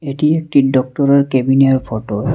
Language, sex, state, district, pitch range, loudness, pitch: Bengali, male, Assam, Hailakandi, 130-140 Hz, -14 LUFS, 135 Hz